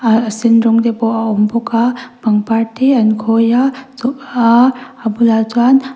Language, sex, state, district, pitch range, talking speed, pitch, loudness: Mizo, female, Mizoram, Aizawl, 225-250 Hz, 190 wpm, 230 Hz, -13 LUFS